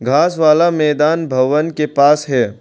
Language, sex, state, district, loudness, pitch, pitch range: Hindi, male, Arunachal Pradesh, Longding, -14 LUFS, 150 Hz, 140-155 Hz